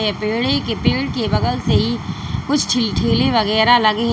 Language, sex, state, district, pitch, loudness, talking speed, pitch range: Hindi, female, Uttar Pradesh, Lalitpur, 225 Hz, -17 LUFS, 190 wpm, 215-245 Hz